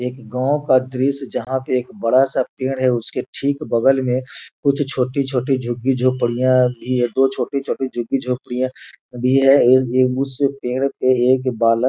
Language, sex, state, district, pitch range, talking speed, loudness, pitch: Hindi, male, Bihar, Gopalganj, 125-135 Hz, 165 wpm, -19 LUFS, 130 Hz